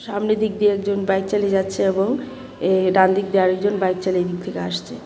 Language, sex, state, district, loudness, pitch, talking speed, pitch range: Bengali, female, Tripura, West Tripura, -20 LUFS, 195 Hz, 215 wpm, 185-205 Hz